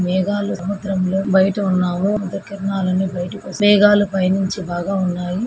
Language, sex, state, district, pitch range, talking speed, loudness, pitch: Telugu, female, Andhra Pradesh, Srikakulam, 185-200 Hz, 120 wpm, -18 LUFS, 190 Hz